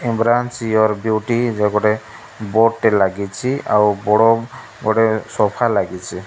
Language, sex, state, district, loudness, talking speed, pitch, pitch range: Odia, male, Odisha, Malkangiri, -17 LUFS, 115 wpm, 110 Hz, 105-115 Hz